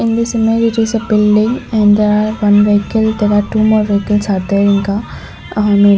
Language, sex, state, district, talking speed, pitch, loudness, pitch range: English, female, Chandigarh, Chandigarh, 210 wpm, 210 Hz, -13 LUFS, 205-220 Hz